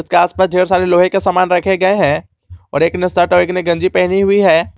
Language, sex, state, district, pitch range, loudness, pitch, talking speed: Hindi, male, Jharkhand, Garhwa, 170-185 Hz, -13 LUFS, 180 Hz, 275 wpm